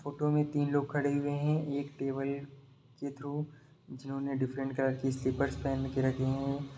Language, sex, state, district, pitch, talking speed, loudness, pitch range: Hindi, male, Bihar, Sitamarhi, 140 Hz, 175 wpm, -33 LUFS, 135-145 Hz